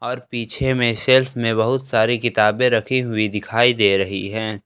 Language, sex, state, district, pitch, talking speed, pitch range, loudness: Hindi, male, Jharkhand, Ranchi, 115 Hz, 180 wpm, 110-125 Hz, -18 LUFS